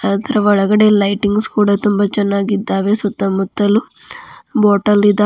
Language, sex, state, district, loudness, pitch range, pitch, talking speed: Kannada, female, Karnataka, Bidar, -14 LUFS, 200-210 Hz, 205 Hz, 115 wpm